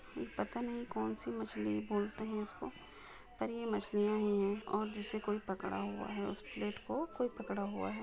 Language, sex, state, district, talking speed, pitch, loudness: Hindi, female, Bihar, Jahanabad, 185 wpm, 205 Hz, -39 LUFS